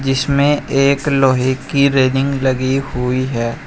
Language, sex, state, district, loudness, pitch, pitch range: Hindi, male, Uttar Pradesh, Shamli, -15 LUFS, 135 Hz, 130-140 Hz